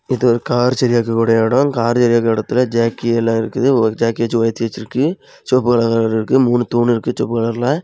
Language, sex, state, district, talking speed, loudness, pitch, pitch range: Tamil, male, Tamil Nadu, Kanyakumari, 190 wpm, -16 LUFS, 120 Hz, 115-125 Hz